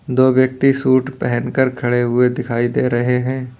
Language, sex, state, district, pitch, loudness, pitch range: Hindi, male, Uttar Pradesh, Lalitpur, 125 Hz, -16 LUFS, 120-130 Hz